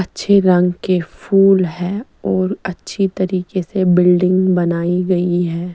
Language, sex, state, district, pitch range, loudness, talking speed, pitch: Hindi, female, Chandigarh, Chandigarh, 180-190 Hz, -16 LUFS, 135 wpm, 185 Hz